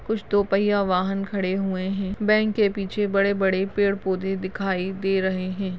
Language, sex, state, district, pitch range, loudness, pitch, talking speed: Hindi, female, Goa, North and South Goa, 190-200 Hz, -23 LUFS, 195 Hz, 185 wpm